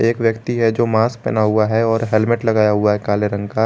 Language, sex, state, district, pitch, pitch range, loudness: Hindi, male, Jharkhand, Garhwa, 110 Hz, 105-115 Hz, -17 LUFS